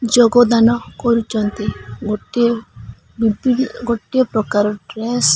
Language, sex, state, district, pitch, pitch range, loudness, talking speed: Odia, male, Odisha, Malkangiri, 230 Hz, 210-240 Hz, -17 LUFS, 65 wpm